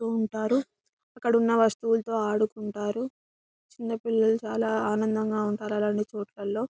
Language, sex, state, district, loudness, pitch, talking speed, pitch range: Telugu, female, Telangana, Karimnagar, -27 LUFS, 220 Hz, 125 wpm, 210-230 Hz